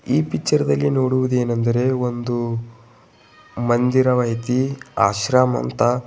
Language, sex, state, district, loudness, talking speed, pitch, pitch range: Kannada, male, Karnataka, Bidar, -19 LUFS, 90 wpm, 120 Hz, 115-125 Hz